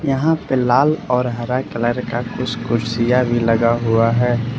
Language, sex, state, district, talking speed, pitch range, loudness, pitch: Hindi, male, Arunachal Pradesh, Lower Dibang Valley, 170 wpm, 115-125 Hz, -18 LUFS, 120 Hz